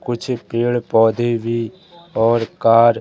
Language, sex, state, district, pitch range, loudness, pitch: Hindi, male, Madhya Pradesh, Katni, 115-120 Hz, -17 LUFS, 115 Hz